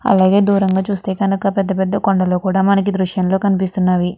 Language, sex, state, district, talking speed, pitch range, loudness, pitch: Telugu, female, Andhra Pradesh, Guntur, 185 wpm, 190-195 Hz, -16 LUFS, 190 Hz